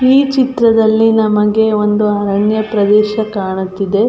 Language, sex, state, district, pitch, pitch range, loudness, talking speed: Kannada, female, Karnataka, Belgaum, 215 Hz, 205-225 Hz, -12 LUFS, 105 wpm